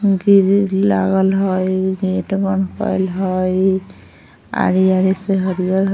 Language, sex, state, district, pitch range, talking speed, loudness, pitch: Maithili, female, Bihar, Vaishali, 185-195 Hz, 70 wpm, -16 LUFS, 190 Hz